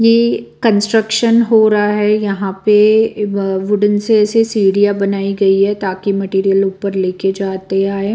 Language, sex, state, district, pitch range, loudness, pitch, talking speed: Hindi, female, Bihar, West Champaran, 195-215 Hz, -14 LUFS, 205 Hz, 145 wpm